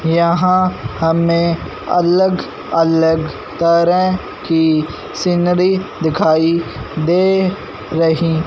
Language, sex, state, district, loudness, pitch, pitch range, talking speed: Hindi, male, Punjab, Fazilka, -15 LUFS, 170 Hz, 160-180 Hz, 70 wpm